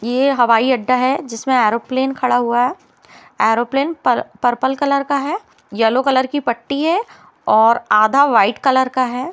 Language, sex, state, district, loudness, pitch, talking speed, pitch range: Hindi, female, Bihar, Sitamarhi, -16 LUFS, 255 Hz, 155 wpm, 240-275 Hz